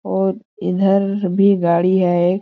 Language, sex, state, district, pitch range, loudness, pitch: Hindi, male, Jharkhand, Jamtara, 180-195 Hz, -17 LUFS, 190 Hz